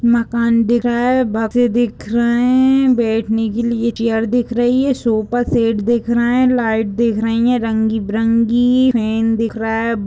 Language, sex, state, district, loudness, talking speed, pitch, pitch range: Hindi, female, Bihar, Saran, -16 LUFS, 130 wpm, 235 Hz, 225-240 Hz